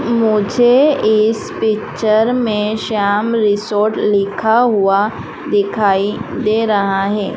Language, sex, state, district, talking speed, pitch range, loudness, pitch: Hindi, female, Madhya Pradesh, Dhar, 100 wpm, 205-225 Hz, -15 LUFS, 215 Hz